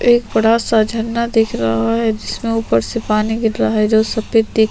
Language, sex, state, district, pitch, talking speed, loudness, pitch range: Hindi, female, Chhattisgarh, Sukma, 225 Hz, 230 wpm, -16 LUFS, 215-230 Hz